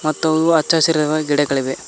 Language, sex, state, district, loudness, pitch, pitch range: Kannada, male, Karnataka, Koppal, -16 LUFS, 155 Hz, 145-160 Hz